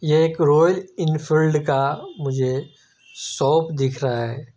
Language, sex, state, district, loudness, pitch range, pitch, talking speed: Hindi, male, Bihar, Jamui, -20 LUFS, 135-160 Hz, 150 Hz, 130 wpm